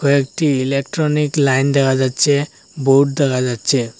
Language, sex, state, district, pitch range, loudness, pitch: Bengali, male, Assam, Hailakandi, 130-145 Hz, -16 LUFS, 140 Hz